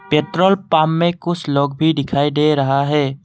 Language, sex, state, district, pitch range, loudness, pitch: Hindi, male, Assam, Kamrup Metropolitan, 140-170 Hz, -16 LUFS, 150 Hz